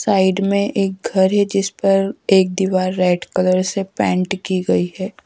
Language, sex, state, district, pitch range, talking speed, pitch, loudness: Hindi, female, Madhya Pradesh, Dhar, 185-195 Hz, 180 wpm, 190 Hz, -17 LUFS